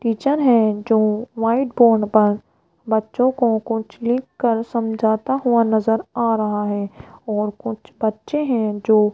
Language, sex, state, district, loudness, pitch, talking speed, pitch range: Hindi, female, Rajasthan, Jaipur, -19 LUFS, 225 Hz, 145 wpm, 210-240 Hz